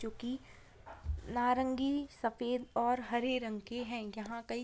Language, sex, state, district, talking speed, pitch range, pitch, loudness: Hindi, female, Jharkhand, Sahebganj, 155 wpm, 230-250 Hz, 240 Hz, -36 LUFS